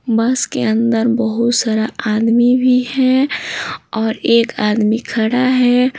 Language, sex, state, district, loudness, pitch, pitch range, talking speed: Hindi, female, Bihar, Patna, -15 LUFS, 235 Hz, 225-250 Hz, 130 wpm